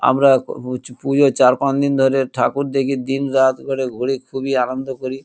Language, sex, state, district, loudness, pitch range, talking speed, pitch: Bengali, male, West Bengal, Kolkata, -18 LUFS, 130-135 Hz, 195 wpm, 135 Hz